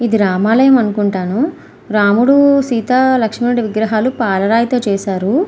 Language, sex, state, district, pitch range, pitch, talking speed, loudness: Telugu, female, Andhra Pradesh, Srikakulam, 205-255 Hz, 230 Hz, 100 wpm, -13 LUFS